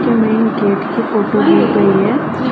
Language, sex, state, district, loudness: Hindi, female, Uttar Pradesh, Ghazipur, -13 LUFS